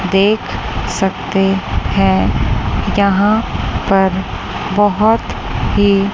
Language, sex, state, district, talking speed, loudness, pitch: Hindi, female, Chandigarh, Chandigarh, 70 wpm, -15 LUFS, 195 Hz